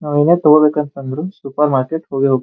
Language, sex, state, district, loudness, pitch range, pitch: Kannada, male, Karnataka, Bijapur, -15 LUFS, 135-155 Hz, 150 Hz